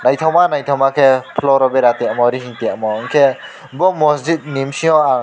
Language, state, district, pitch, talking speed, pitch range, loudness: Kokborok, Tripura, West Tripura, 135 Hz, 160 wpm, 125-150 Hz, -15 LUFS